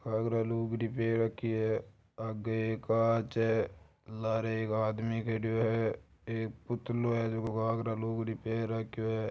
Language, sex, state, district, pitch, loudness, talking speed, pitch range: Marwari, male, Rajasthan, Churu, 115 Hz, -33 LUFS, 150 wpm, 110-115 Hz